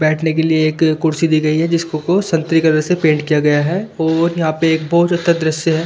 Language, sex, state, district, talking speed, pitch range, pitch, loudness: Hindi, male, Delhi, New Delhi, 255 wpm, 155-170 Hz, 160 Hz, -15 LUFS